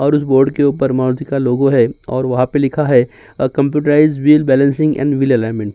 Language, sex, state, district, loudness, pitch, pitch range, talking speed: Hindi, male, Uttar Pradesh, Jyotiba Phule Nagar, -14 LUFS, 135 Hz, 130-145 Hz, 200 wpm